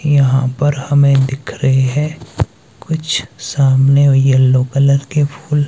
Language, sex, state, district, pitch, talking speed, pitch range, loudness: Hindi, male, Himachal Pradesh, Shimla, 140 Hz, 135 wpm, 135-145 Hz, -14 LUFS